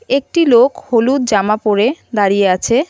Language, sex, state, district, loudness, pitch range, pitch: Bengali, female, West Bengal, Cooch Behar, -14 LUFS, 205-270 Hz, 235 Hz